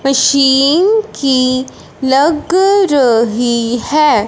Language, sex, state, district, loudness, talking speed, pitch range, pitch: Hindi, male, Punjab, Fazilka, -12 LUFS, 70 wpm, 255-305 Hz, 275 Hz